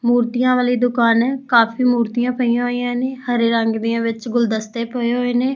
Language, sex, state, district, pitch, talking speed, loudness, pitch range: Punjabi, female, Punjab, Fazilka, 240 Hz, 185 wpm, -18 LUFS, 230-245 Hz